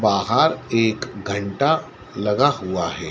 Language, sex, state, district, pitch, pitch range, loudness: Hindi, male, Madhya Pradesh, Dhar, 100 Hz, 100-115 Hz, -21 LUFS